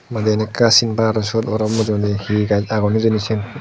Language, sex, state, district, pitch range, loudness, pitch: Chakma, male, Tripura, Dhalai, 105-110 Hz, -17 LUFS, 110 Hz